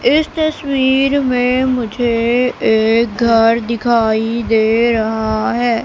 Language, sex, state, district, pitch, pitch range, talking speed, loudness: Hindi, female, Madhya Pradesh, Katni, 235 Hz, 225-250 Hz, 105 wpm, -14 LUFS